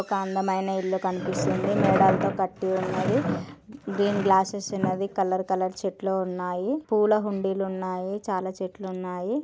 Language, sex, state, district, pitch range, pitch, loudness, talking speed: Telugu, female, Andhra Pradesh, Guntur, 185-195 Hz, 190 Hz, -26 LUFS, 125 wpm